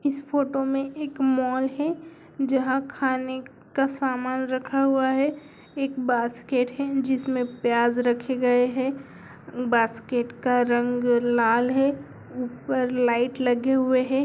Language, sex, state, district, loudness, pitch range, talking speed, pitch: Hindi, female, Bihar, Sitamarhi, -24 LUFS, 245-270 Hz, 130 wpm, 260 Hz